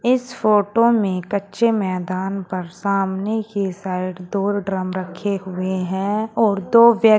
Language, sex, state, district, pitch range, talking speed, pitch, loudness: Hindi, male, Uttar Pradesh, Shamli, 185-215 Hz, 140 wpm, 195 Hz, -20 LUFS